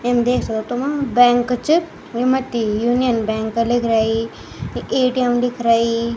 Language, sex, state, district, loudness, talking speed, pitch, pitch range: Garhwali, male, Uttarakhand, Tehri Garhwal, -18 LUFS, 155 wpm, 240 Hz, 230-250 Hz